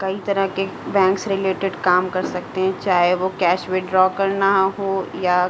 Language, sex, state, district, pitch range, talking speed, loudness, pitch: Hindi, female, Uttar Pradesh, Hamirpur, 185-195 Hz, 195 wpm, -19 LUFS, 190 Hz